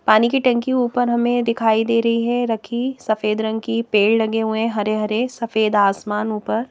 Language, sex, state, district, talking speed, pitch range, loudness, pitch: Hindi, female, Madhya Pradesh, Bhopal, 190 wpm, 215-240 Hz, -19 LUFS, 225 Hz